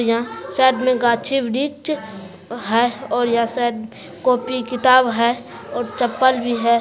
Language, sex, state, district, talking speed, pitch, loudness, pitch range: Hindi, female, Bihar, Supaul, 130 wpm, 240 Hz, -19 LUFS, 230-255 Hz